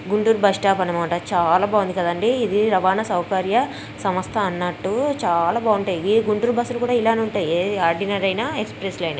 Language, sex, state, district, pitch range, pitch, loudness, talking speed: Telugu, female, Andhra Pradesh, Guntur, 180-220 Hz, 195 Hz, -20 LUFS, 150 wpm